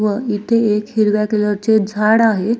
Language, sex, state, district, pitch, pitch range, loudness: Marathi, female, Maharashtra, Solapur, 215 Hz, 210-220 Hz, -16 LUFS